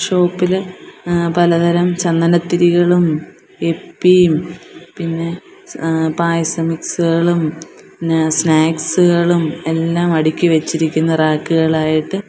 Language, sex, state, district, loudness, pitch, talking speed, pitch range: Malayalam, female, Kerala, Kollam, -15 LUFS, 170 Hz, 105 wpm, 160-175 Hz